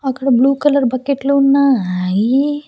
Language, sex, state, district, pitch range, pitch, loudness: Telugu, female, Andhra Pradesh, Annamaya, 250-280 Hz, 270 Hz, -14 LUFS